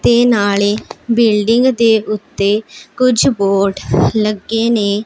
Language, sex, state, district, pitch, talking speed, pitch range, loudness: Punjabi, female, Punjab, Pathankot, 215 Hz, 105 wpm, 205-235 Hz, -14 LUFS